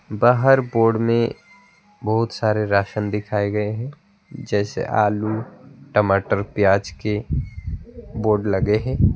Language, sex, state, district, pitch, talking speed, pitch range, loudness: Hindi, male, West Bengal, Alipurduar, 105 Hz, 110 wpm, 105-120 Hz, -21 LUFS